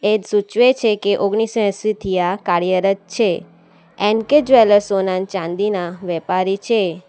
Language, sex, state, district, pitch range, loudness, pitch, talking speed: Gujarati, female, Gujarat, Valsad, 185-215 Hz, -17 LUFS, 200 Hz, 135 wpm